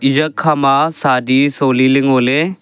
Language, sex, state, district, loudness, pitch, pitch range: Wancho, male, Arunachal Pradesh, Longding, -13 LUFS, 135 Hz, 130-155 Hz